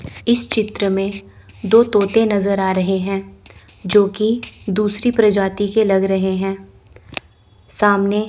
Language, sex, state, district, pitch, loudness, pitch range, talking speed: Hindi, female, Chandigarh, Chandigarh, 195 Hz, -17 LUFS, 185-210 Hz, 125 wpm